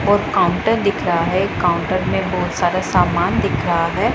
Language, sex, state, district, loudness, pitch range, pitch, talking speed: Hindi, female, Punjab, Pathankot, -18 LUFS, 165-205 Hz, 185 Hz, 190 wpm